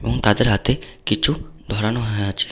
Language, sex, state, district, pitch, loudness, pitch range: Bengali, male, West Bengal, Paschim Medinipur, 110 Hz, -21 LUFS, 105-125 Hz